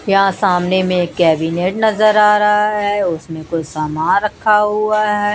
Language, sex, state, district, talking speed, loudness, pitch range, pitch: Hindi, female, Odisha, Malkangiri, 155 wpm, -15 LUFS, 170-210 Hz, 195 Hz